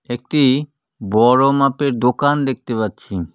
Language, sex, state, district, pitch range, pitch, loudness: Bengali, male, West Bengal, Cooch Behar, 115-140 Hz, 130 Hz, -17 LUFS